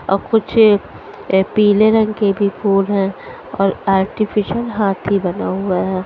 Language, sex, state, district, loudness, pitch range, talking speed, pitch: Hindi, female, Haryana, Charkhi Dadri, -16 LUFS, 195-215 Hz, 150 wpm, 200 Hz